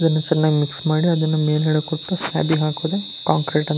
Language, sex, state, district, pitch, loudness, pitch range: Kannada, male, Karnataka, Shimoga, 155 Hz, -20 LUFS, 155-160 Hz